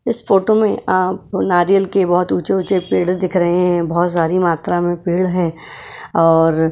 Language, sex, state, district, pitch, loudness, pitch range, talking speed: Hindi, female, Goa, North and South Goa, 180 Hz, -16 LUFS, 175-190 Hz, 185 wpm